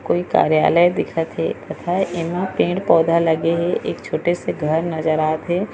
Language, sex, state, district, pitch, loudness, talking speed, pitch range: Chhattisgarhi, female, Chhattisgarh, Raigarh, 170 Hz, -19 LUFS, 155 wpm, 160-175 Hz